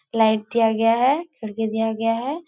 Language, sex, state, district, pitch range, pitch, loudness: Hindi, female, Bihar, Supaul, 220-250 Hz, 225 Hz, -21 LUFS